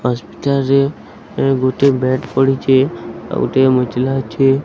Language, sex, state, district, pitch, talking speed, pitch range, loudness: Odia, male, Odisha, Sambalpur, 130 Hz, 90 wpm, 130-135 Hz, -16 LUFS